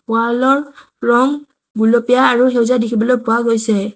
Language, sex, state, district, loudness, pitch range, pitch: Assamese, female, Assam, Sonitpur, -14 LUFS, 230-255 Hz, 240 Hz